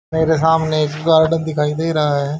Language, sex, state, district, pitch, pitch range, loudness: Hindi, male, Haryana, Charkhi Dadri, 160 Hz, 150-160 Hz, -16 LUFS